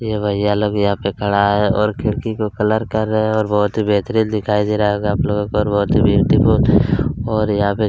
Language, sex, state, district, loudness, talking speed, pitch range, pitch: Hindi, male, Chhattisgarh, Kabirdham, -17 LUFS, 250 wpm, 105-110 Hz, 105 Hz